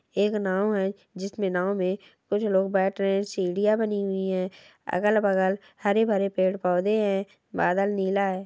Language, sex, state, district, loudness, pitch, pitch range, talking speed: Hindi, female, Chhattisgarh, Sukma, -26 LUFS, 195 Hz, 190-205 Hz, 155 wpm